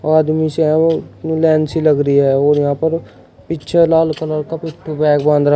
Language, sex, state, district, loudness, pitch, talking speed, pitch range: Hindi, male, Uttar Pradesh, Shamli, -15 LUFS, 155 Hz, 185 wpm, 145-160 Hz